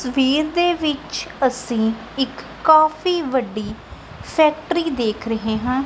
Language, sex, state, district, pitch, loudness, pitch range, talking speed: Punjabi, female, Punjab, Kapurthala, 265 Hz, -20 LUFS, 230-310 Hz, 115 wpm